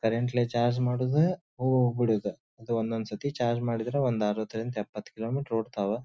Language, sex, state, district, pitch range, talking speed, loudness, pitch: Kannada, male, Karnataka, Dharwad, 110-125 Hz, 150 wpm, -29 LUFS, 120 Hz